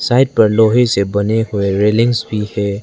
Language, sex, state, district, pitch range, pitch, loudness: Hindi, male, Arunachal Pradesh, Lower Dibang Valley, 100-115 Hz, 110 Hz, -14 LUFS